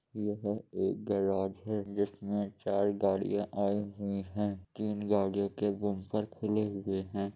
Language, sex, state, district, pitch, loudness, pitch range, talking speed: Hindi, male, Uttar Pradesh, Jyotiba Phule Nagar, 100 Hz, -34 LUFS, 100-105 Hz, 155 wpm